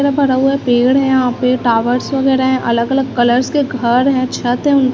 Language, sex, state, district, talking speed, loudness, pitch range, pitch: Hindi, female, Chhattisgarh, Raipur, 230 wpm, -14 LUFS, 245-270 Hz, 260 Hz